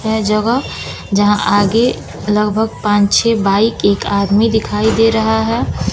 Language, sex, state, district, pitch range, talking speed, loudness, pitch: Hindi, female, Bihar, West Champaran, 205-225 Hz, 140 wpm, -14 LUFS, 215 Hz